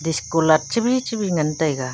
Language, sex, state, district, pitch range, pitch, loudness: Wancho, female, Arunachal Pradesh, Longding, 155-220 Hz, 165 Hz, -20 LUFS